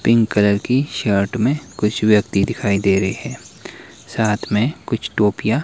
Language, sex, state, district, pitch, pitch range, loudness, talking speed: Hindi, male, Himachal Pradesh, Shimla, 105 Hz, 100-115 Hz, -18 LUFS, 170 wpm